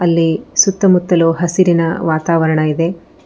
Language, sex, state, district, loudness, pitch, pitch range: Kannada, female, Karnataka, Bangalore, -14 LUFS, 170 Hz, 165-180 Hz